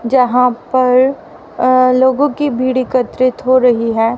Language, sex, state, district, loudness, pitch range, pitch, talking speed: Hindi, female, Haryana, Rohtak, -13 LUFS, 250-260 Hz, 255 Hz, 145 wpm